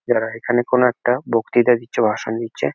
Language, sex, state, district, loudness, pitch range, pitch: Bengali, male, West Bengal, Kolkata, -19 LUFS, 115-120 Hz, 120 Hz